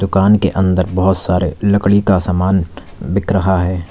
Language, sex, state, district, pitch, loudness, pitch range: Hindi, male, Uttar Pradesh, Lalitpur, 95 Hz, -14 LUFS, 90-95 Hz